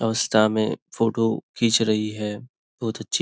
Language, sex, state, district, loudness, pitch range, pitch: Hindi, male, Maharashtra, Nagpur, -23 LUFS, 110-115 Hz, 110 Hz